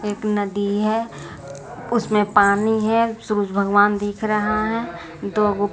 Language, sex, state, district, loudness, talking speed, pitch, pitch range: Hindi, female, Bihar, Patna, -20 LUFS, 125 wpm, 210 Hz, 205-220 Hz